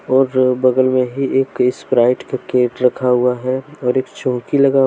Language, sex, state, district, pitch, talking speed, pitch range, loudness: Hindi, male, Jharkhand, Deoghar, 130 Hz, 170 wpm, 125-130 Hz, -16 LUFS